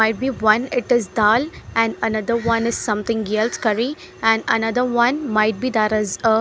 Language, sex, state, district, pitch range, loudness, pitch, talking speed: English, female, Haryana, Rohtak, 215-240 Hz, -19 LUFS, 225 Hz, 205 wpm